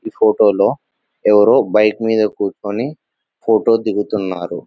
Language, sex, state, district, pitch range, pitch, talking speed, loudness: Telugu, male, Telangana, Nalgonda, 105-115 Hz, 105 Hz, 115 wpm, -15 LUFS